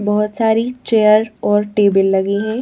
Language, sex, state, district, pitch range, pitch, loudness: Hindi, female, Madhya Pradesh, Bhopal, 205-225 Hz, 210 Hz, -15 LUFS